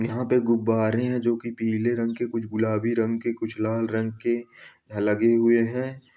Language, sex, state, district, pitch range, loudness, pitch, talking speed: Hindi, male, Uttar Pradesh, Ghazipur, 110-120 Hz, -25 LUFS, 115 Hz, 185 wpm